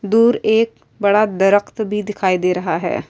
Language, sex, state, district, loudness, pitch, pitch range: Urdu, female, Uttar Pradesh, Budaun, -17 LUFS, 205 Hz, 190-215 Hz